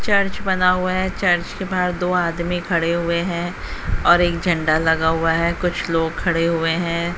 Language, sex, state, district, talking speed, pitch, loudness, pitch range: Hindi, female, Haryana, Jhajjar, 190 wpm, 175 Hz, -19 LUFS, 165-180 Hz